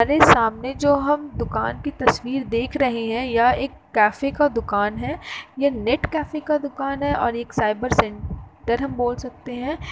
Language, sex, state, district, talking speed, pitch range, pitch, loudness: Hindi, female, Uttar Pradesh, Jalaun, 180 wpm, 235-285 Hz, 260 Hz, -21 LUFS